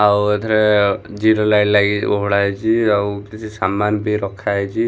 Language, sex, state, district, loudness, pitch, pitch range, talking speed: Odia, male, Odisha, Khordha, -17 LUFS, 105 Hz, 100-105 Hz, 145 wpm